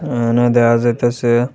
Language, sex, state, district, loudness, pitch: Bengali, male, Tripura, West Tripura, -15 LUFS, 120 Hz